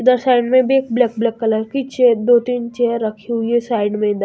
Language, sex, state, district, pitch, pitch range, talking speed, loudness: Hindi, female, Haryana, Jhajjar, 235 Hz, 225-250 Hz, 270 wpm, -17 LUFS